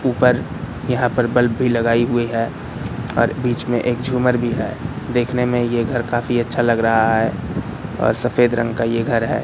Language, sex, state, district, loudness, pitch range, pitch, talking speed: Hindi, male, Madhya Pradesh, Katni, -19 LUFS, 115-125 Hz, 120 Hz, 195 wpm